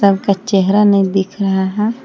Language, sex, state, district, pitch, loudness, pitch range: Hindi, female, Jharkhand, Palamu, 200 Hz, -14 LUFS, 195-205 Hz